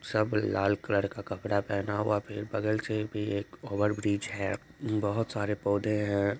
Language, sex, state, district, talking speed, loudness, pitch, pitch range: Maithili, male, Bihar, Supaul, 140 wpm, -31 LUFS, 105 Hz, 100-105 Hz